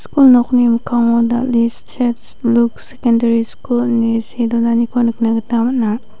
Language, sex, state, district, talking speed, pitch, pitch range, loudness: Garo, female, Meghalaya, West Garo Hills, 135 wpm, 235 Hz, 230-240 Hz, -15 LUFS